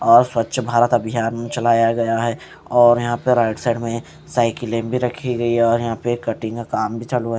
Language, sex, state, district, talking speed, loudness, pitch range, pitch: Hindi, male, Punjab, Fazilka, 210 wpm, -19 LUFS, 115-120 Hz, 115 Hz